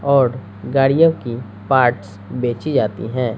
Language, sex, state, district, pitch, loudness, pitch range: Hindi, female, Bihar, West Champaran, 125 Hz, -17 LUFS, 110-135 Hz